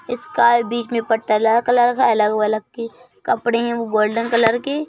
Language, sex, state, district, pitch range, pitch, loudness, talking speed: Hindi, male, Madhya Pradesh, Bhopal, 225-240 Hz, 235 Hz, -18 LUFS, 195 wpm